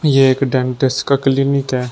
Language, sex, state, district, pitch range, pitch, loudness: Hindi, male, Uttar Pradesh, Shamli, 130-140 Hz, 135 Hz, -15 LUFS